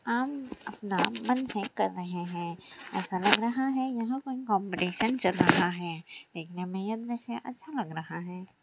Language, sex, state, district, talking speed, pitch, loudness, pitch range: Hindi, female, Bihar, Sitamarhi, 175 wpm, 205 Hz, -30 LUFS, 180-245 Hz